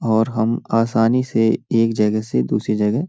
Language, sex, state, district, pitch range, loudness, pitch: Hindi, male, Uttar Pradesh, Hamirpur, 105-115 Hz, -18 LUFS, 110 Hz